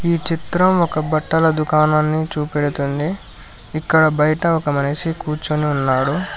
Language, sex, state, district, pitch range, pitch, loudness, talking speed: Telugu, male, Telangana, Hyderabad, 150-165 Hz, 155 Hz, -18 LUFS, 115 wpm